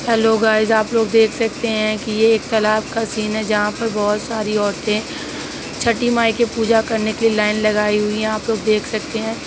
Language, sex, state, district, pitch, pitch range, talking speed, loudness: Hindi, female, Uttar Pradesh, Jalaun, 220 Hz, 215-225 Hz, 210 wpm, -18 LUFS